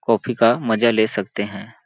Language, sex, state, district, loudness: Hindi, male, Chhattisgarh, Balrampur, -19 LUFS